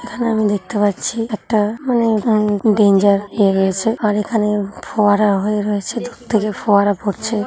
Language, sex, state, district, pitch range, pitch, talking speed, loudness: Bengali, female, West Bengal, North 24 Parganas, 205-225 Hz, 210 Hz, 135 wpm, -17 LUFS